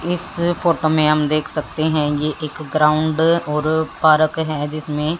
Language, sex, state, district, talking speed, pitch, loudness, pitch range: Hindi, female, Haryana, Jhajjar, 160 wpm, 155 Hz, -18 LUFS, 150-160 Hz